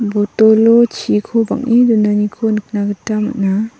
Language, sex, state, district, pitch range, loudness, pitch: Garo, female, Meghalaya, South Garo Hills, 210-230 Hz, -14 LUFS, 220 Hz